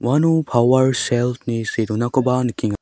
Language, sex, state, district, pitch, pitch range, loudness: Garo, male, Meghalaya, South Garo Hills, 125 Hz, 115-130 Hz, -18 LUFS